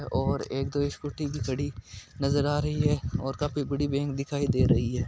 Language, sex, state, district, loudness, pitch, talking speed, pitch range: Marwari, male, Rajasthan, Nagaur, -28 LUFS, 140 Hz, 215 wpm, 135-145 Hz